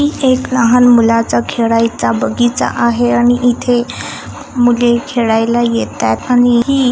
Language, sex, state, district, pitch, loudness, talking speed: Marathi, female, Maharashtra, Aurangabad, 235 Hz, -12 LUFS, 130 wpm